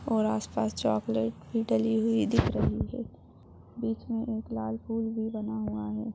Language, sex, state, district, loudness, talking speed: Hindi, female, Uttar Pradesh, Budaun, -30 LUFS, 185 wpm